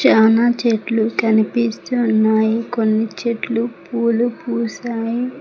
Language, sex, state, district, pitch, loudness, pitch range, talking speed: Telugu, female, Telangana, Mahabubabad, 230 Hz, -18 LUFS, 220-240 Hz, 80 wpm